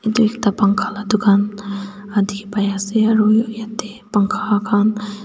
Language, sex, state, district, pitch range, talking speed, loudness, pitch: Nagamese, female, Nagaland, Dimapur, 205-215 Hz, 135 wpm, -18 LUFS, 210 Hz